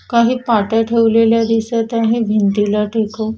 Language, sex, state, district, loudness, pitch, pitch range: Marathi, female, Maharashtra, Washim, -15 LUFS, 225 Hz, 220-230 Hz